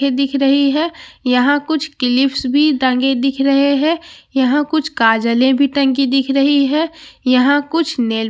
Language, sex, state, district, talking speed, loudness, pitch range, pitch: Hindi, female, Bihar, Katihar, 175 wpm, -15 LUFS, 260-295 Hz, 275 Hz